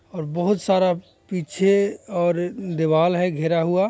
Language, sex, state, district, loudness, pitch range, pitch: Hindi, male, Bihar, Jahanabad, -22 LUFS, 170-190 Hz, 175 Hz